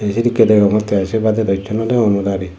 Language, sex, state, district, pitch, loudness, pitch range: Chakma, male, Tripura, Dhalai, 105 Hz, -15 LUFS, 100-110 Hz